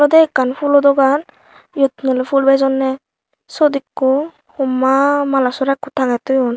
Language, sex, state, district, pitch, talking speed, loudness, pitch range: Chakma, female, Tripura, Unakoti, 275 Hz, 130 wpm, -15 LUFS, 265-285 Hz